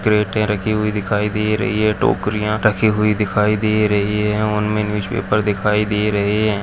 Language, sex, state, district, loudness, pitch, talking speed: Hindi, male, Chhattisgarh, Jashpur, -18 LUFS, 105 Hz, 180 wpm